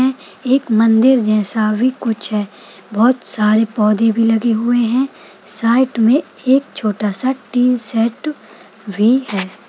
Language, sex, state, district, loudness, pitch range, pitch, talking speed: Hindi, female, Bihar, Bhagalpur, -15 LUFS, 215-255 Hz, 225 Hz, 135 wpm